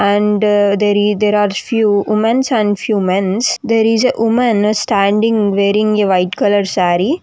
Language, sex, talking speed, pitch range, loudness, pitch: English, female, 165 wpm, 200-225 Hz, -13 LUFS, 210 Hz